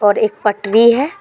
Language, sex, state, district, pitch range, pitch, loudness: Hindi, female, Jharkhand, Deoghar, 210-235 Hz, 215 Hz, -13 LUFS